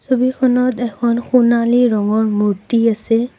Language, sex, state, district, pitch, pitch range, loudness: Assamese, female, Assam, Kamrup Metropolitan, 235 Hz, 220-250 Hz, -15 LUFS